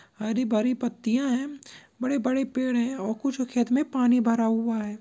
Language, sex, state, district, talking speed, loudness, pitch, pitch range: Maithili, female, Bihar, Begusarai, 190 wpm, -26 LUFS, 245 Hz, 230-260 Hz